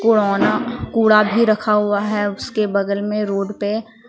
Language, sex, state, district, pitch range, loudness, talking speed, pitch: Hindi, female, Jharkhand, Palamu, 205-220 Hz, -18 LUFS, 160 wpm, 210 Hz